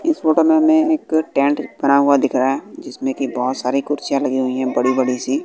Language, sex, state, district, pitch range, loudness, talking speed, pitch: Hindi, male, Bihar, West Champaran, 130-160 Hz, -17 LUFS, 240 wpm, 140 Hz